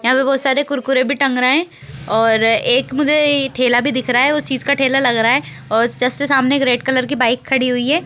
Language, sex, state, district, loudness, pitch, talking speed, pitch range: Hindi, female, Bihar, Begusarai, -15 LUFS, 260 Hz, 260 wpm, 245-280 Hz